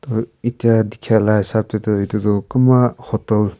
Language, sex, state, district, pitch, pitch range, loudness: Nagamese, male, Nagaland, Kohima, 110 Hz, 105-115 Hz, -17 LUFS